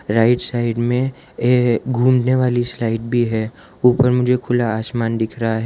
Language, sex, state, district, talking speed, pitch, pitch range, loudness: Hindi, male, Gujarat, Valsad, 160 wpm, 120 Hz, 115-125 Hz, -18 LUFS